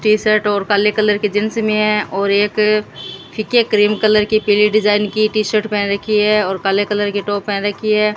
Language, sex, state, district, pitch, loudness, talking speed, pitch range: Hindi, female, Rajasthan, Bikaner, 210 Hz, -15 LUFS, 215 wpm, 205-215 Hz